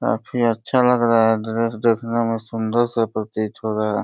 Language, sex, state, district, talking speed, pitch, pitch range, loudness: Hindi, male, Uttar Pradesh, Deoria, 210 wpm, 115 Hz, 110-115 Hz, -20 LUFS